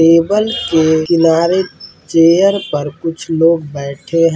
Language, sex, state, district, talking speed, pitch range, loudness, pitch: Hindi, male, Rajasthan, Churu, 125 wpm, 160-170 Hz, -13 LUFS, 165 Hz